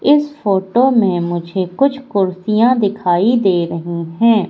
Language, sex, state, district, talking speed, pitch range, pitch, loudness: Hindi, female, Madhya Pradesh, Katni, 135 wpm, 175-240 Hz, 200 Hz, -15 LUFS